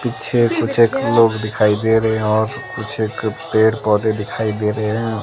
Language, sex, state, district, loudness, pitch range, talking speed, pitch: Hindi, female, Himachal Pradesh, Shimla, -17 LUFS, 110-115 Hz, 185 wpm, 110 Hz